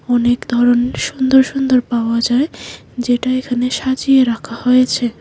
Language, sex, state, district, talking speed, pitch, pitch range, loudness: Bengali, female, Tripura, West Tripura, 125 wpm, 250 Hz, 240-260 Hz, -15 LUFS